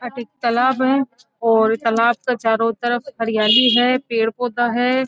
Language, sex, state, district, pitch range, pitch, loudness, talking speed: Marwari, female, Rajasthan, Nagaur, 230-250 Hz, 240 Hz, -17 LUFS, 165 wpm